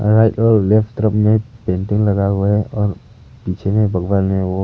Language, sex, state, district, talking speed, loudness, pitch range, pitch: Hindi, male, Arunachal Pradesh, Papum Pare, 195 wpm, -16 LUFS, 100-110 Hz, 105 Hz